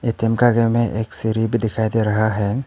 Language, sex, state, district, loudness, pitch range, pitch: Hindi, male, Arunachal Pradesh, Papum Pare, -19 LUFS, 110-115 Hz, 115 Hz